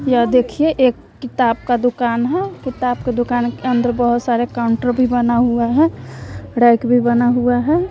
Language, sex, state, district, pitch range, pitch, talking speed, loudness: Hindi, female, Bihar, West Champaran, 240-255 Hz, 245 Hz, 180 wpm, -16 LUFS